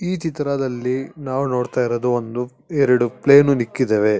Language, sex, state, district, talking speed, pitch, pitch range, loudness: Kannada, male, Karnataka, Chamarajanagar, 130 wpm, 130 Hz, 125-140 Hz, -19 LUFS